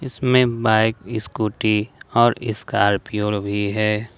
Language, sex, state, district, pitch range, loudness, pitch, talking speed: Hindi, male, Jharkhand, Ranchi, 105-120 Hz, -20 LUFS, 110 Hz, 100 wpm